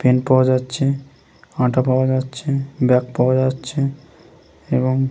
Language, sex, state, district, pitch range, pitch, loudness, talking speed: Bengali, male, West Bengal, Paschim Medinipur, 130-135 Hz, 130 Hz, -19 LUFS, 115 wpm